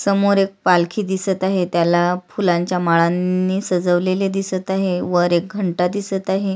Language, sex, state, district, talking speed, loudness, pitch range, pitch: Marathi, female, Maharashtra, Sindhudurg, 145 wpm, -18 LUFS, 175-195 Hz, 185 Hz